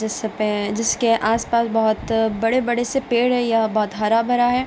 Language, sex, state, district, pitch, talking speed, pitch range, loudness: Hindi, female, Bihar, Darbhanga, 225 Hz, 220 wpm, 220-240 Hz, -20 LUFS